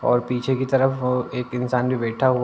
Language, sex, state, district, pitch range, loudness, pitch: Hindi, male, Uttar Pradesh, Ghazipur, 125-130 Hz, -22 LUFS, 125 Hz